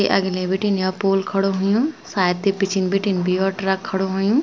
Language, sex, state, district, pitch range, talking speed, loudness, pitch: Garhwali, female, Uttarakhand, Tehri Garhwal, 190-195 Hz, 215 wpm, -20 LUFS, 195 Hz